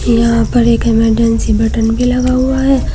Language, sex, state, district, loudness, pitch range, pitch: Hindi, female, Uttar Pradesh, Saharanpur, -12 LUFS, 225-250 Hz, 230 Hz